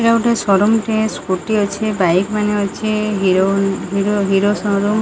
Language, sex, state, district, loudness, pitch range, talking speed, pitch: Odia, female, Odisha, Sambalpur, -16 LUFS, 195-215 Hz, 180 wpm, 205 Hz